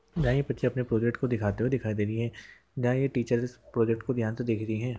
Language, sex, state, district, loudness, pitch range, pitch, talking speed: Hindi, male, Rajasthan, Churu, -29 LUFS, 115-125 Hz, 120 Hz, 205 wpm